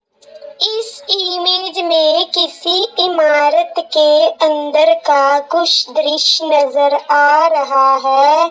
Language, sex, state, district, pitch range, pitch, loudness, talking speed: Hindi, female, Jharkhand, Sahebganj, 295-345 Hz, 315 Hz, -12 LUFS, 100 wpm